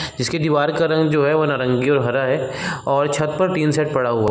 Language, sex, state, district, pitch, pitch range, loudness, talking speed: Hindi, male, Uttar Pradesh, Gorakhpur, 150 Hz, 140-155 Hz, -19 LUFS, 265 wpm